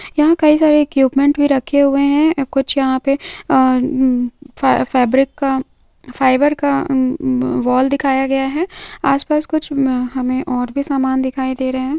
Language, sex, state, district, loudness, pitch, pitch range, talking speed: Hindi, female, Andhra Pradesh, Krishna, -16 LUFS, 275 Hz, 260-290 Hz, 135 wpm